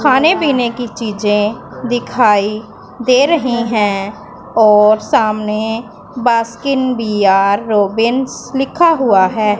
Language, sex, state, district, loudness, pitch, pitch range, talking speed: Hindi, female, Punjab, Pathankot, -14 LUFS, 225 Hz, 210-255 Hz, 100 wpm